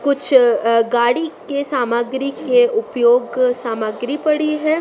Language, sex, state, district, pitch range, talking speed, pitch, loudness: Hindi, female, Madhya Pradesh, Dhar, 240-305 Hz, 110 wpm, 270 Hz, -17 LUFS